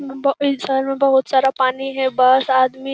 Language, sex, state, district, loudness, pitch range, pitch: Hindi, female, Bihar, Jamui, -17 LUFS, 260-275 Hz, 270 Hz